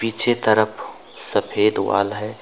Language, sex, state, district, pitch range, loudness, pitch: Hindi, male, West Bengal, Alipurduar, 105-110 Hz, -20 LUFS, 110 Hz